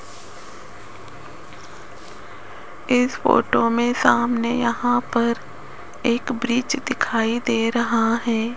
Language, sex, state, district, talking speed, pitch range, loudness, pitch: Hindi, female, Rajasthan, Jaipur, 85 wpm, 235-245 Hz, -20 LUFS, 235 Hz